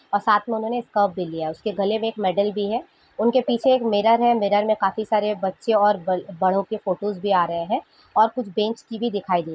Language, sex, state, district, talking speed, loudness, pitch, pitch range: Hindi, female, Jharkhand, Sahebganj, 255 wpm, -22 LUFS, 210 Hz, 195-225 Hz